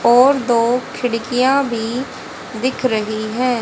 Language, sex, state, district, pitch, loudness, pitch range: Hindi, female, Haryana, Charkhi Dadri, 245 Hz, -17 LUFS, 230-255 Hz